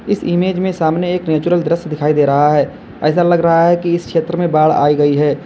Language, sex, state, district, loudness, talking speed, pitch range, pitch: Hindi, male, Uttar Pradesh, Lalitpur, -14 LUFS, 250 wpm, 150-175 Hz, 165 Hz